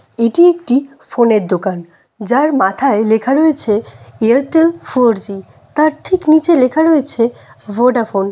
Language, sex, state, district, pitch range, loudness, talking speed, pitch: Bengali, female, West Bengal, Kolkata, 210-305 Hz, -13 LUFS, 135 wpm, 250 Hz